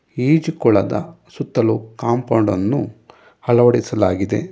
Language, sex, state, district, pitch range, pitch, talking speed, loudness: Kannada, male, Karnataka, Bangalore, 110-130 Hz, 120 Hz, 80 wpm, -18 LUFS